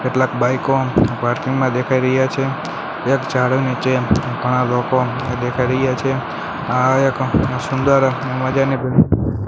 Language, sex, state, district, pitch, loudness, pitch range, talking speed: Gujarati, male, Gujarat, Gandhinagar, 130 Hz, -18 LUFS, 125-135 Hz, 115 wpm